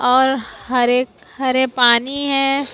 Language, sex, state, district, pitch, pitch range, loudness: Hindi, female, Maharashtra, Mumbai Suburban, 260 Hz, 250-270 Hz, -16 LUFS